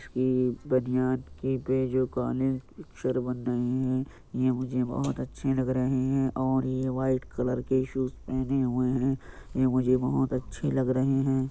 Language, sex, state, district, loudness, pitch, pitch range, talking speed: Hindi, male, Uttar Pradesh, Jyotiba Phule Nagar, -28 LUFS, 130 Hz, 125-130 Hz, 140 wpm